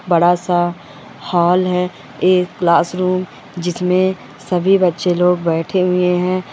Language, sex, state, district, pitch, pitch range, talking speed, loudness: Hindi, female, Goa, North and South Goa, 180 Hz, 175-185 Hz, 120 wpm, -16 LUFS